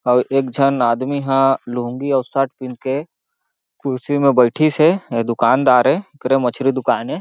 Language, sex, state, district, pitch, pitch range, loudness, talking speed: Chhattisgarhi, male, Chhattisgarh, Jashpur, 135 Hz, 125-140 Hz, -17 LUFS, 160 wpm